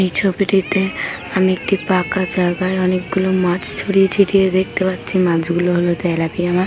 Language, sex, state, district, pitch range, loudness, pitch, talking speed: Bengali, female, West Bengal, Paschim Medinipur, 180-190 Hz, -17 LUFS, 185 Hz, 155 wpm